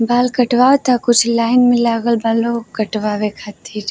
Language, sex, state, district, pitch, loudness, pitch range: Bhojpuri, female, Uttar Pradesh, Varanasi, 235 Hz, -15 LUFS, 215-245 Hz